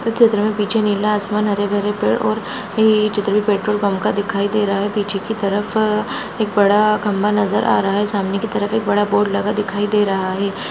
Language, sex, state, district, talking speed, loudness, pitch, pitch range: Hindi, female, Maharashtra, Sindhudurg, 230 wpm, -18 LUFS, 205 Hz, 200-210 Hz